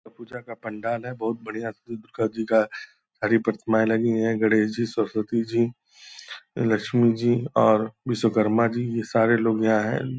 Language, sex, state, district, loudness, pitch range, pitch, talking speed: Hindi, male, Bihar, Purnia, -23 LUFS, 110-115 Hz, 115 Hz, 165 wpm